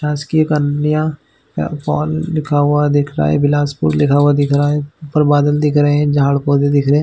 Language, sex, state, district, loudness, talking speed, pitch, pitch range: Hindi, male, Chhattisgarh, Bilaspur, -15 LUFS, 205 wpm, 145 Hz, 140-150 Hz